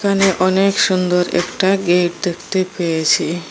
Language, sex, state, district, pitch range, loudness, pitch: Bengali, female, Assam, Hailakandi, 175-190 Hz, -16 LUFS, 180 Hz